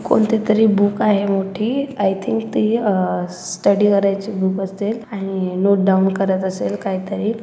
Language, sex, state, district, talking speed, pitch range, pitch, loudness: Marathi, female, Maharashtra, Solapur, 145 wpm, 190-215 Hz, 200 Hz, -18 LUFS